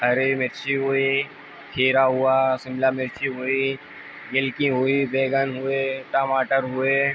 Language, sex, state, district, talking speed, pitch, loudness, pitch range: Hindi, male, Uttar Pradesh, Ghazipur, 115 wpm, 135 Hz, -22 LUFS, 130-135 Hz